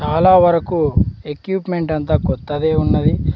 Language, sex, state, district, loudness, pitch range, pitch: Telugu, male, Andhra Pradesh, Sri Satya Sai, -16 LUFS, 145-175 Hz, 155 Hz